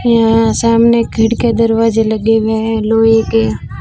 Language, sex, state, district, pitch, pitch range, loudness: Hindi, female, Rajasthan, Jaisalmer, 225 Hz, 220-230 Hz, -12 LUFS